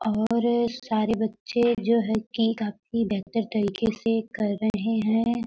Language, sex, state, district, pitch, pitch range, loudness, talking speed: Hindi, female, Bihar, Gopalganj, 225 Hz, 215-230 Hz, -25 LUFS, 140 wpm